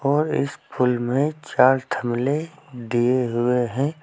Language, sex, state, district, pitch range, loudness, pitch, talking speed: Hindi, male, Uttar Pradesh, Saharanpur, 125-145 Hz, -22 LUFS, 130 Hz, 135 wpm